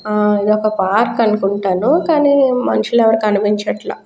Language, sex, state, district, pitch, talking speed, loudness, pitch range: Telugu, female, Andhra Pradesh, Guntur, 215 Hz, 135 wpm, -14 LUFS, 210-240 Hz